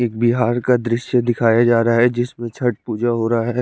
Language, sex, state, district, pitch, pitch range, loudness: Hindi, male, Chandigarh, Chandigarh, 120 Hz, 115-120 Hz, -18 LUFS